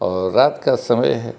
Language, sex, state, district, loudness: Hindi, male, Jharkhand, Palamu, -17 LUFS